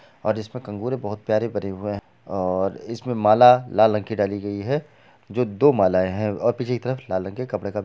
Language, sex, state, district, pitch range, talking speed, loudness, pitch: Hindi, female, Bihar, Sitamarhi, 100-125 Hz, 200 wpm, -22 LUFS, 110 Hz